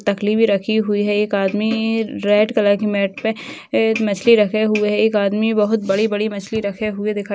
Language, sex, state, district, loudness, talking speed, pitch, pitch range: Hindi, female, Maharashtra, Nagpur, -18 LUFS, 205 wpm, 210 Hz, 205-220 Hz